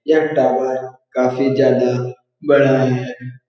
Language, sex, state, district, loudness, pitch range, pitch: Hindi, male, Bihar, Jahanabad, -16 LUFS, 125-135 Hz, 130 Hz